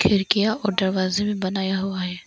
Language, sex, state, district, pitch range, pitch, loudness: Hindi, female, Arunachal Pradesh, Longding, 190-205 Hz, 195 Hz, -22 LUFS